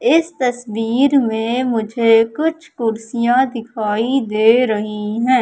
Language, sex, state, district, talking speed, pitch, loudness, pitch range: Hindi, female, Madhya Pradesh, Katni, 110 wpm, 235 Hz, -17 LUFS, 225-255 Hz